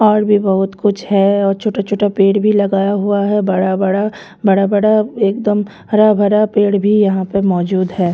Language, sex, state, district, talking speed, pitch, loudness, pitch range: Hindi, female, Delhi, New Delhi, 190 wpm, 200 Hz, -14 LUFS, 195-210 Hz